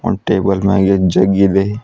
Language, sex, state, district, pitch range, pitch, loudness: Kannada, female, Karnataka, Bidar, 95-100 Hz, 95 Hz, -13 LUFS